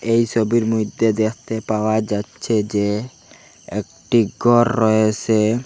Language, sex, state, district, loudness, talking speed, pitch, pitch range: Bengali, male, Assam, Hailakandi, -19 LUFS, 115 wpm, 110 Hz, 105-115 Hz